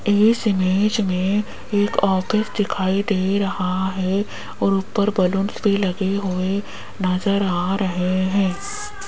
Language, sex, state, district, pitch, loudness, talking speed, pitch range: Hindi, female, Rajasthan, Jaipur, 195 Hz, -21 LUFS, 125 wpm, 185-205 Hz